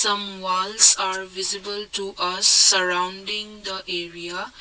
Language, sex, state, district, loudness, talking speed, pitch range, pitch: English, male, Assam, Kamrup Metropolitan, -19 LUFS, 115 wpm, 185-200 Hz, 190 Hz